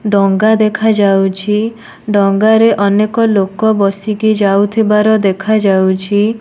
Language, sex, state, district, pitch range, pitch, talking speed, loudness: Odia, female, Odisha, Nuapada, 195-220 Hz, 210 Hz, 75 wpm, -12 LUFS